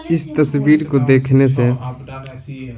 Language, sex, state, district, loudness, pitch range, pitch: Hindi, male, Bihar, Patna, -15 LUFS, 130-150 Hz, 135 Hz